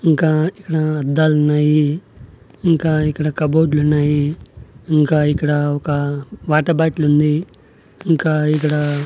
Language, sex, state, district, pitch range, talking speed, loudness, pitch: Telugu, male, Andhra Pradesh, Annamaya, 150-155 Hz, 120 wpm, -17 LUFS, 150 Hz